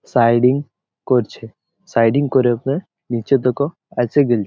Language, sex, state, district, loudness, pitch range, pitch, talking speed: Bengali, male, West Bengal, Malda, -18 LUFS, 120-140 Hz, 125 Hz, 120 wpm